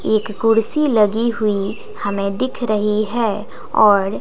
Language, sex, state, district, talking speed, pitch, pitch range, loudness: Hindi, female, Bihar, West Champaran, 130 wpm, 215 Hz, 205-230 Hz, -18 LUFS